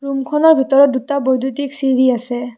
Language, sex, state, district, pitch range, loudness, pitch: Assamese, female, Assam, Kamrup Metropolitan, 260-280 Hz, -15 LUFS, 270 Hz